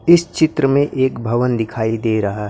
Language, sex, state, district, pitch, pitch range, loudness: Hindi, male, Maharashtra, Gondia, 120 Hz, 110-140 Hz, -17 LUFS